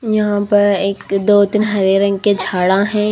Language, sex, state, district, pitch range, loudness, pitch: Hindi, female, Haryana, Rohtak, 195-210 Hz, -14 LUFS, 205 Hz